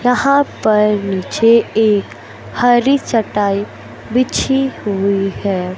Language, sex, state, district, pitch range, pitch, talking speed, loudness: Hindi, male, Madhya Pradesh, Katni, 195-245 Hz, 210 Hz, 95 wpm, -15 LUFS